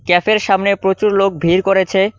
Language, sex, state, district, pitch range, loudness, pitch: Bengali, male, West Bengal, Cooch Behar, 190-200 Hz, -14 LUFS, 195 Hz